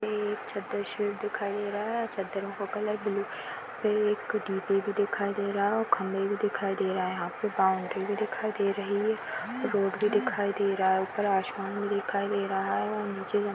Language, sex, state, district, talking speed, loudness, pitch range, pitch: Hindi, female, Maharashtra, Dhule, 225 wpm, -30 LUFS, 195-210 Hz, 205 Hz